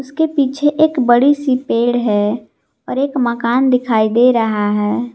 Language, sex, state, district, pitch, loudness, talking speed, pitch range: Hindi, female, Jharkhand, Garhwa, 245 Hz, -15 LUFS, 165 wpm, 230-270 Hz